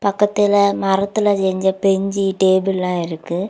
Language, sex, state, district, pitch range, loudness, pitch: Tamil, female, Tamil Nadu, Kanyakumari, 190-200 Hz, -17 LUFS, 195 Hz